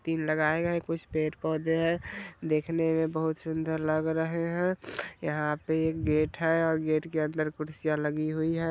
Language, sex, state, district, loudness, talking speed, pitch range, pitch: Hindi, male, Bihar, Vaishali, -29 LUFS, 185 wpm, 155-165 Hz, 160 Hz